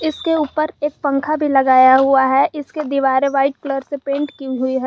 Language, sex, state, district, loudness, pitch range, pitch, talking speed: Hindi, male, Jharkhand, Garhwa, -16 LUFS, 265-295 Hz, 275 Hz, 210 wpm